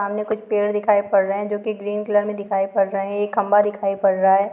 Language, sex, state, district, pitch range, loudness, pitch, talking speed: Hindi, female, Bihar, Muzaffarpur, 195-210 Hz, -20 LUFS, 205 Hz, 290 wpm